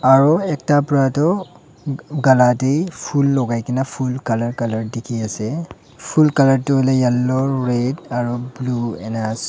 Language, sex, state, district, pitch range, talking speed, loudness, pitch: Nagamese, male, Nagaland, Dimapur, 120-145 Hz, 140 wpm, -18 LUFS, 130 Hz